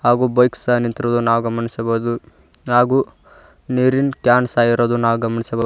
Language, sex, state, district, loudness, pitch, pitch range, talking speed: Kannada, male, Karnataka, Koppal, -17 LUFS, 120 Hz, 115-125 Hz, 140 wpm